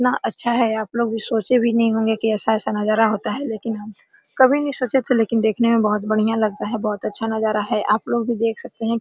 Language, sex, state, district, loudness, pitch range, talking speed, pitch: Hindi, female, Bihar, Araria, -20 LUFS, 215-235 Hz, 255 wpm, 225 Hz